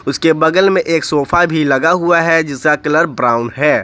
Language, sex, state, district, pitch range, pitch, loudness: Hindi, male, Jharkhand, Ranchi, 145-165 Hz, 160 Hz, -13 LUFS